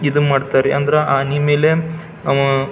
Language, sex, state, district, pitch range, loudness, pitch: Kannada, male, Karnataka, Belgaum, 135-150 Hz, -16 LUFS, 145 Hz